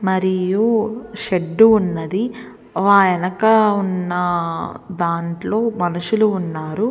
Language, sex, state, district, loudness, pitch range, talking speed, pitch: Telugu, female, Andhra Pradesh, Visakhapatnam, -18 LUFS, 175-215 Hz, 80 wpm, 190 Hz